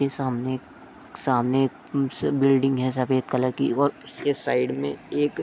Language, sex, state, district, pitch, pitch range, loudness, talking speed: Hindi, male, Uttar Pradesh, Etah, 130 Hz, 130-135 Hz, -24 LUFS, 190 wpm